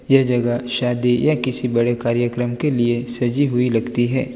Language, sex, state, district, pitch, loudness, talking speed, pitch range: Hindi, male, Gujarat, Valsad, 120 Hz, -19 LUFS, 180 wpm, 120-130 Hz